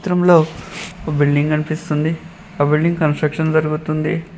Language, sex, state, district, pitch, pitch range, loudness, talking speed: Telugu, male, Telangana, Mahabubabad, 155 Hz, 155-175 Hz, -17 LUFS, 110 wpm